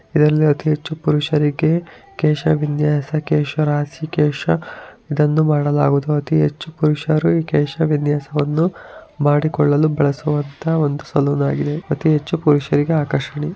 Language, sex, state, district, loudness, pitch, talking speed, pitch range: Kannada, male, Karnataka, Mysore, -18 LUFS, 150 Hz, 100 wpm, 145-155 Hz